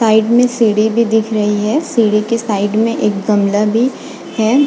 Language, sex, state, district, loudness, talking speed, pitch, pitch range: Hindi, female, Goa, North and South Goa, -14 LUFS, 195 wpm, 220 Hz, 210-230 Hz